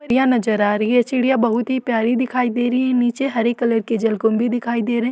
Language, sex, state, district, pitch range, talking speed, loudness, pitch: Hindi, female, Uttar Pradesh, Etah, 230-250 Hz, 260 wpm, -18 LUFS, 240 Hz